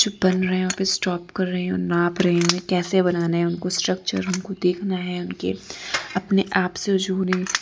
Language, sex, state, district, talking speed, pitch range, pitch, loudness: Hindi, female, Gujarat, Valsad, 205 wpm, 175-185 Hz, 185 Hz, -22 LUFS